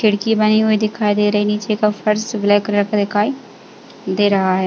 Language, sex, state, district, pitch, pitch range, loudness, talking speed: Hindi, female, Uttar Pradesh, Jalaun, 210 Hz, 205-215 Hz, -17 LUFS, 220 wpm